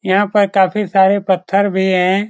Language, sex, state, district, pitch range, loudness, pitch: Hindi, male, Bihar, Saran, 190-205 Hz, -14 LUFS, 195 Hz